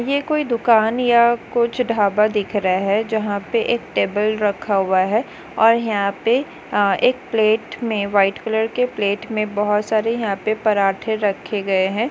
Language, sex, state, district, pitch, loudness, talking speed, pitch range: Hindi, female, Goa, North and South Goa, 215 Hz, -19 LUFS, 175 wpm, 205-235 Hz